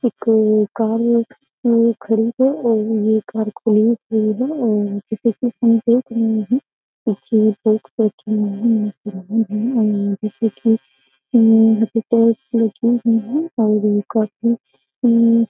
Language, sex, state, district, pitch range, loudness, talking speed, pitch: Hindi, female, Uttar Pradesh, Jyotiba Phule Nagar, 215-235 Hz, -17 LUFS, 40 wpm, 225 Hz